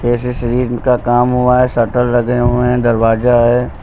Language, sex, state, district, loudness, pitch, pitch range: Hindi, male, Uttar Pradesh, Lucknow, -13 LUFS, 120 Hz, 120-125 Hz